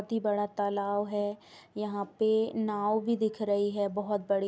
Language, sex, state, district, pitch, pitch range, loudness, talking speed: Hindi, female, Uttar Pradesh, Jalaun, 205 Hz, 205-215 Hz, -31 LUFS, 160 wpm